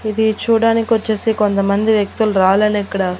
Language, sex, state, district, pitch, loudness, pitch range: Telugu, female, Andhra Pradesh, Annamaya, 215 Hz, -15 LUFS, 200-220 Hz